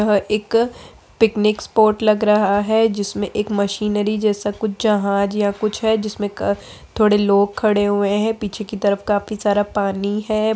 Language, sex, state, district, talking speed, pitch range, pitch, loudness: Hindi, female, Bihar, Saharsa, 170 wpm, 205-215 Hz, 210 Hz, -18 LUFS